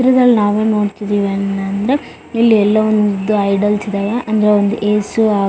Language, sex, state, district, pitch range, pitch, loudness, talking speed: Kannada, female, Karnataka, Bellary, 200-215 Hz, 210 Hz, -14 LUFS, 175 wpm